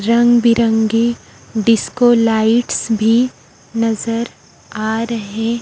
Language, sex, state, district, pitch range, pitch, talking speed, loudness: Hindi, female, Chhattisgarh, Raipur, 225-235 Hz, 230 Hz, 85 wpm, -15 LUFS